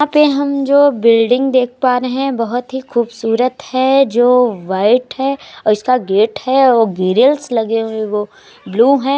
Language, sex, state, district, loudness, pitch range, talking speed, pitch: Hindi, female, Uttar Pradesh, Jalaun, -14 LUFS, 225-270 Hz, 175 wpm, 250 Hz